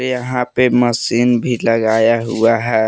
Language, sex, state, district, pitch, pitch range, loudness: Hindi, male, Jharkhand, Palamu, 120 Hz, 115-125 Hz, -15 LUFS